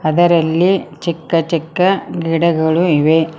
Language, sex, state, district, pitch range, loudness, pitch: Kannada, female, Karnataka, Koppal, 160-175 Hz, -15 LUFS, 165 Hz